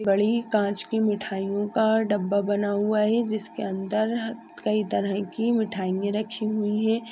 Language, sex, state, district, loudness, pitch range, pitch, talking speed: Hindi, female, Bihar, Madhepura, -25 LUFS, 200-220 Hz, 215 Hz, 160 wpm